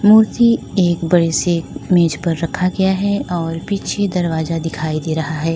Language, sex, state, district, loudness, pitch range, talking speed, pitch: Hindi, female, Uttar Pradesh, Lalitpur, -17 LUFS, 165-190 Hz, 170 wpm, 170 Hz